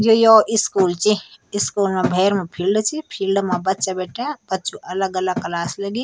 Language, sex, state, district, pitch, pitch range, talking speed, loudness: Garhwali, male, Uttarakhand, Tehri Garhwal, 195 Hz, 185-215 Hz, 190 wpm, -19 LUFS